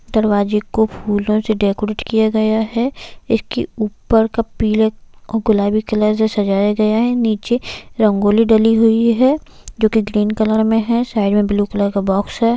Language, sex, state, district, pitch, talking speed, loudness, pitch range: Hindi, female, Jharkhand, Jamtara, 220 Hz, 170 wpm, -16 LUFS, 210-225 Hz